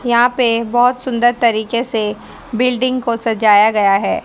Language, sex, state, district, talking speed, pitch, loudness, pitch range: Hindi, female, Haryana, Charkhi Dadri, 155 wpm, 235 Hz, -15 LUFS, 220-245 Hz